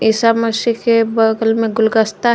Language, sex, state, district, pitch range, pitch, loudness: Hindi, female, Jharkhand, Garhwa, 220-230 Hz, 225 Hz, -15 LUFS